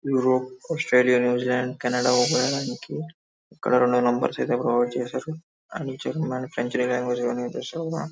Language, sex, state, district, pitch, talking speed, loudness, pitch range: Telugu, male, Telangana, Karimnagar, 125 Hz, 90 wpm, -24 LUFS, 125-135 Hz